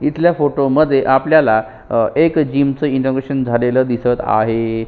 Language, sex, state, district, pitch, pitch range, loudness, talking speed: Marathi, male, Maharashtra, Sindhudurg, 135 Hz, 120-145 Hz, -15 LUFS, 125 wpm